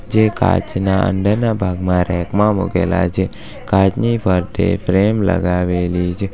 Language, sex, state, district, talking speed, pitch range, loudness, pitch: Gujarati, male, Gujarat, Valsad, 125 wpm, 90-105 Hz, -16 LUFS, 95 Hz